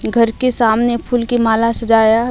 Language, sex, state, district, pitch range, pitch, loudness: Hindi, female, Odisha, Malkangiri, 225-240 Hz, 230 Hz, -14 LUFS